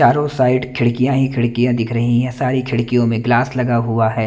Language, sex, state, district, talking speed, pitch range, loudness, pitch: Hindi, male, Chandigarh, Chandigarh, 210 wpm, 120-125 Hz, -17 LUFS, 120 Hz